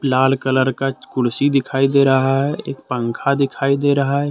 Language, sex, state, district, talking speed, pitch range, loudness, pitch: Hindi, male, Jharkhand, Deoghar, 195 wpm, 130-140 Hz, -18 LUFS, 135 Hz